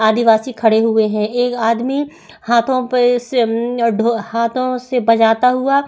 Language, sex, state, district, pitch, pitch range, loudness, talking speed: Hindi, female, Chhattisgarh, Sukma, 235 Hz, 225-255 Hz, -15 LUFS, 145 wpm